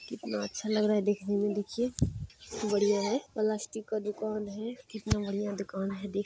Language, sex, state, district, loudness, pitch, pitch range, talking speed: Maithili, female, Bihar, Supaul, -32 LUFS, 205 Hz, 200-215 Hz, 190 wpm